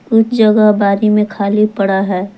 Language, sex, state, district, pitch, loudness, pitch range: Hindi, female, Jharkhand, Palamu, 210 Hz, -12 LUFS, 200-215 Hz